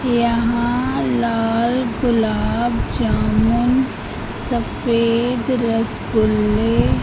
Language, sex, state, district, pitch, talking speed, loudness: Hindi, female, Madhya Pradesh, Katni, 230 Hz, 50 wpm, -18 LUFS